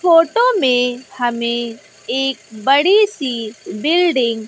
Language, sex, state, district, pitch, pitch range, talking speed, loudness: Hindi, female, Bihar, West Champaran, 255 Hz, 235-330 Hz, 105 wpm, -16 LUFS